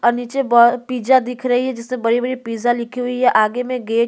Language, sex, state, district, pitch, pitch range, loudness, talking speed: Hindi, female, Chhattisgarh, Korba, 245 Hz, 235-255 Hz, -17 LUFS, 235 wpm